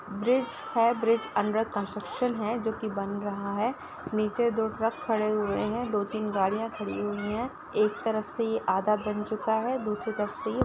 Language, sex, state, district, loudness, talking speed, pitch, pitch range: Hindi, female, Uttar Pradesh, Ghazipur, -29 LUFS, 195 wpm, 215 Hz, 210-230 Hz